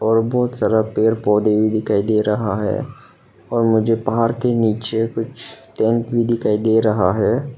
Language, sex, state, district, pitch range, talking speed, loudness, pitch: Hindi, male, Arunachal Pradesh, Papum Pare, 110-115 Hz, 175 wpm, -18 LUFS, 110 Hz